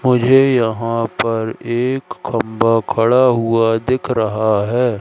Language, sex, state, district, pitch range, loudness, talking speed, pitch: Hindi, male, Madhya Pradesh, Katni, 115-125 Hz, -16 LUFS, 120 wpm, 115 Hz